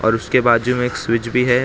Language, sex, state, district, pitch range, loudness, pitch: Hindi, male, Maharashtra, Mumbai Suburban, 115-125 Hz, -17 LUFS, 120 Hz